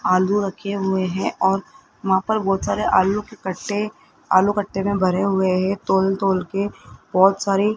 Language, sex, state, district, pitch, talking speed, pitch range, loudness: Hindi, male, Rajasthan, Jaipur, 195 Hz, 175 wpm, 190-205 Hz, -20 LUFS